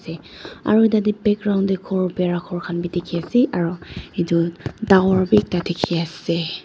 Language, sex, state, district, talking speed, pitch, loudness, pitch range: Nagamese, female, Nagaland, Dimapur, 170 wpm, 175 Hz, -20 LUFS, 170-205 Hz